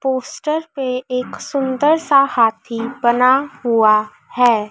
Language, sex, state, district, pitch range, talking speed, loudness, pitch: Hindi, female, Madhya Pradesh, Dhar, 230-275 Hz, 115 wpm, -17 LUFS, 250 Hz